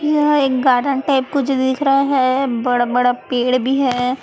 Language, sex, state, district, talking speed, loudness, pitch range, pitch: Hindi, female, Chhattisgarh, Raipur, 185 wpm, -16 LUFS, 250-275 Hz, 260 Hz